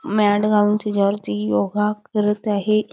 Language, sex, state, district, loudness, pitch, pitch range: Marathi, female, Karnataka, Belgaum, -20 LUFS, 210 Hz, 200-210 Hz